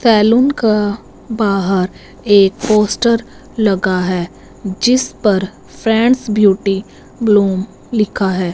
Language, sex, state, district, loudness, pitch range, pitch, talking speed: Hindi, female, Punjab, Fazilka, -14 LUFS, 195-225 Hz, 210 Hz, 100 wpm